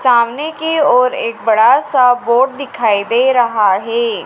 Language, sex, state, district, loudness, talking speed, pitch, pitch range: Hindi, female, Madhya Pradesh, Dhar, -13 LUFS, 155 wpm, 250 Hz, 235-300 Hz